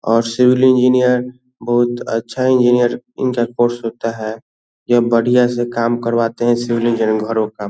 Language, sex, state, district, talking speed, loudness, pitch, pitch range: Hindi, male, Bihar, Saran, 165 wpm, -16 LUFS, 120 Hz, 115-125 Hz